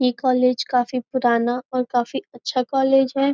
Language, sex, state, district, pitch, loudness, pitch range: Hindi, female, Maharashtra, Nagpur, 255 Hz, -21 LUFS, 245-265 Hz